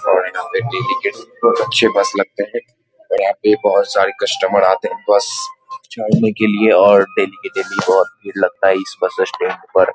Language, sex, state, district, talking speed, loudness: Hindi, male, Bihar, Muzaffarpur, 210 wpm, -16 LUFS